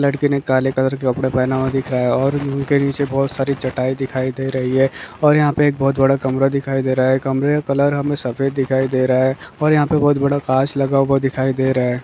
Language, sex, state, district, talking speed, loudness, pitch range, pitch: Hindi, male, Bihar, Kishanganj, 260 wpm, -17 LUFS, 130-140 Hz, 135 Hz